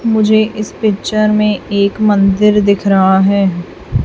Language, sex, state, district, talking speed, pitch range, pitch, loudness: Hindi, female, Chhattisgarh, Raipur, 135 wpm, 195-215 Hz, 205 Hz, -12 LUFS